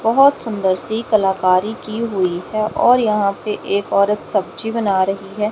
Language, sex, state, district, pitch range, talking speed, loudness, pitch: Hindi, female, Haryana, Rohtak, 195-220 Hz, 175 wpm, -18 LUFS, 210 Hz